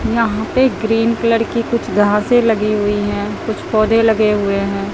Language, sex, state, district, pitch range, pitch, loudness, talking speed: Hindi, female, Bihar, Katihar, 205-230 Hz, 220 Hz, -15 LUFS, 180 wpm